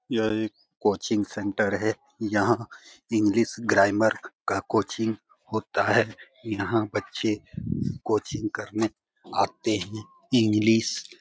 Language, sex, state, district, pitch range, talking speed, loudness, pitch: Hindi, male, Bihar, Jamui, 105-115 Hz, 105 wpm, -26 LUFS, 110 Hz